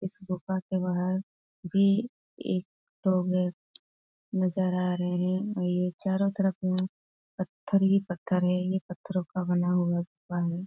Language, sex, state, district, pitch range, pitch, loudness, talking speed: Hindi, female, Bihar, Sitamarhi, 180-190 Hz, 185 Hz, -29 LUFS, 140 wpm